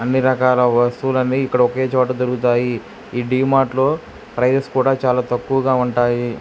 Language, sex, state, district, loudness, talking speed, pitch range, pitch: Telugu, male, Andhra Pradesh, Krishna, -17 LUFS, 140 wpm, 125-130 Hz, 125 Hz